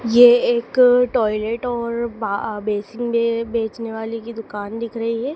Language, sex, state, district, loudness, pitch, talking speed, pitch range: Hindi, female, Madhya Pradesh, Dhar, -19 LUFS, 230 Hz, 155 wpm, 225-240 Hz